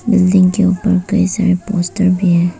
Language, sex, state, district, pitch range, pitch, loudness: Hindi, female, Arunachal Pradesh, Papum Pare, 180-200 Hz, 190 Hz, -14 LUFS